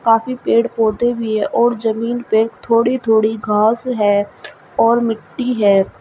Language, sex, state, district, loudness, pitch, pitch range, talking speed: Hindi, female, Uttar Pradesh, Shamli, -16 LUFS, 225 Hz, 215-240 Hz, 150 wpm